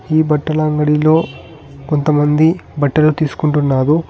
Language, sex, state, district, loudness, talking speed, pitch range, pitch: Telugu, male, Telangana, Hyderabad, -14 LUFS, 90 wpm, 145-155 Hz, 150 Hz